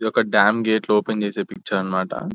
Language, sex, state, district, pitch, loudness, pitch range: Telugu, male, Telangana, Nalgonda, 105 Hz, -20 LUFS, 100-110 Hz